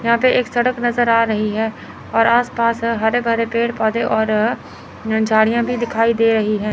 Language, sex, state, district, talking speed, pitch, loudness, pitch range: Hindi, female, Chandigarh, Chandigarh, 185 wpm, 230 Hz, -17 LUFS, 220-235 Hz